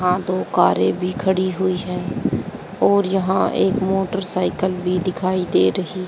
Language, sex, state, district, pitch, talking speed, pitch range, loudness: Hindi, female, Haryana, Jhajjar, 185 Hz, 150 wpm, 180-190 Hz, -20 LUFS